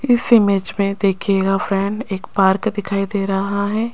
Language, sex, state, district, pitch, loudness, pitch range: Hindi, female, Rajasthan, Jaipur, 200 Hz, -18 LUFS, 195-210 Hz